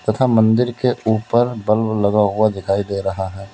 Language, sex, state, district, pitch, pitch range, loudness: Hindi, male, Uttar Pradesh, Lalitpur, 110 Hz, 100-115 Hz, -18 LUFS